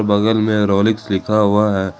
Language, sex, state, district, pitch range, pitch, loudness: Hindi, male, Jharkhand, Ranchi, 100-110 Hz, 105 Hz, -16 LUFS